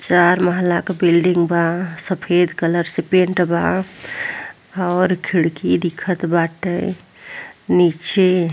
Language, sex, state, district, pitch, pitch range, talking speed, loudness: Bhojpuri, female, Uttar Pradesh, Deoria, 175 Hz, 170-185 Hz, 115 wpm, -18 LUFS